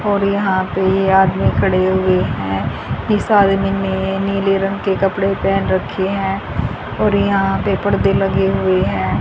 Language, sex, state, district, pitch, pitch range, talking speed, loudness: Hindi, female, Haryana, Jhajjar, 190 Hz, 125-195 Hz, 155 wpm, -16 LUFS